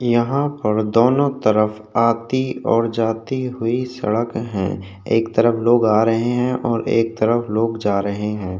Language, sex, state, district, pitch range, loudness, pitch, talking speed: Hindi, male, Maharashtra, Chandrapur, 110-120 Hz, -19 LUFS, 115 Hz, 160 wpm